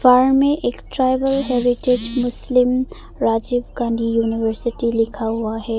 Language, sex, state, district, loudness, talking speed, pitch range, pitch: Hindi, female, Arunachal Pradesh, Papum Pare, -18 LUFS, 125 wpm, 230-255 Hz, 245 Hz